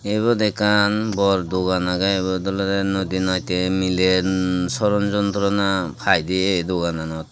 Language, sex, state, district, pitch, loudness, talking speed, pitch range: Chakma, male, Tripura, Dhalai, 95 Hz, -20 LUFS, 140 wpm, 90-100 Hz